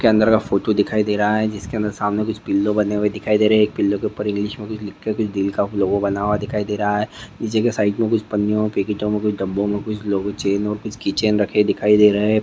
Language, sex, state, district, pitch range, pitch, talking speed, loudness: Hindi, male, Andhra Pradesh, Guntur, 100-110 Hz, 105 Hz, 255 wpm, -20 LUFS